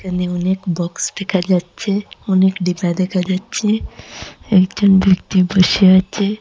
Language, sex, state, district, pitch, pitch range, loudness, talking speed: Bengali, female, Assam, Hailakandi, 185 Hz, 180-195 Hz, -16 LUFS, 120 wpm